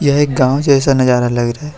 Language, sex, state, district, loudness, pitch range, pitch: Hindi, male, Jharkhand, Deoghar, -13 LUFS, 125-145 Hz, 135 Hz